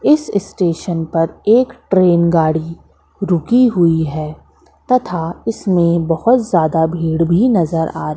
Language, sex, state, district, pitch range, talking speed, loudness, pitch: Hindi, female, Madhya Pradesh, Katni, 165-215 Hz, 130 wpm, -15 LUFS, 170 Hz